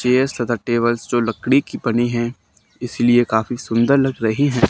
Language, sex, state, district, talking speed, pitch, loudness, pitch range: Hindi, male, Haryana, Charkhi Dadri, 180 wpm, 120 Hz, -18 LUFS, 115-130 Hz